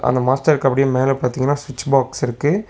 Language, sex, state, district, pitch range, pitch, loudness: Tamil, male, Tamil Nadu, Chennai, 130-140 Hz, 135 Hz, -18 LUFS